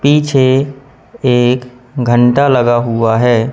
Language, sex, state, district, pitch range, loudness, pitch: Hindi, male, Madhya Pradesh, Katni, 120-135 Hz, -12 LUFS, 125 Hz